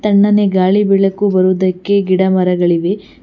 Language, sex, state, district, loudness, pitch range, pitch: Kannada, female, Karnataka, Bangalore, -13 LUFS, 185-200 Hz, 190 Hz